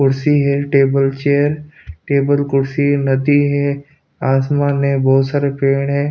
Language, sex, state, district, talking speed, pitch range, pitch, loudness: Hindi, male, Punjab, Pathankot, 135 wpm, 135-145 Hz, 140 Hz, -15 LUFS